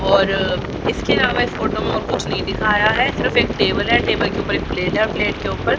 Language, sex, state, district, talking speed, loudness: Hindi, female, Haryana, Rohtak, 260 wpm, -18 LUFS